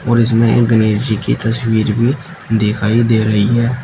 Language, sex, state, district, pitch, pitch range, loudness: Hindi, male, Uttar Pradesh, Shamli, 115 Hz, 110-120 Hz, -14 LUFS